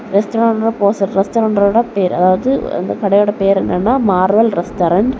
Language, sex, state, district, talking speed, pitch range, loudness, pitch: Tamil, female, Tamil Nadu, Kanyakumari, 105 wpm, 195-225 Hz, -14 LUFS, 200 Hz